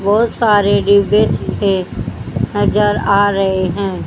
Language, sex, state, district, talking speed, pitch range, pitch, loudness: Hindi, female, Haryana, Charkhi Dadri, 130 wpm, 185-205 Hz, 200 Hz, -14 LUFS